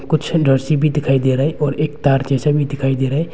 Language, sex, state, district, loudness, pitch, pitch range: Hindi, male, Arunachal Pradesh, Longding, -17 LUFS, 145 Hz, 135-150 Hz